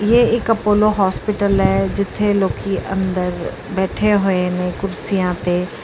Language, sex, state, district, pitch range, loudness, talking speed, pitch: Punjabi, female, Karnataka, Bangalore, 180-210 Hz, -18 LUFS, 135 wpm, 195 Hz